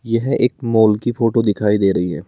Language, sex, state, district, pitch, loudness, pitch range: Hindi, male, Rajasthan, Jaipur, 110 Hz, -16 LUFS, 105-120 Hz